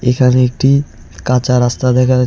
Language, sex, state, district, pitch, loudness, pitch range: Bengali, male, West Bengal, Alipurduar, 125 Hz, -13 LUFS, 125-130 Hz